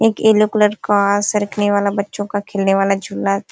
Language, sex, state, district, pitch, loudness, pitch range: Hindi, female, Uttar Pradesh, Ghazipur, 205 Hz, -16 LUFS, 200-210 Hz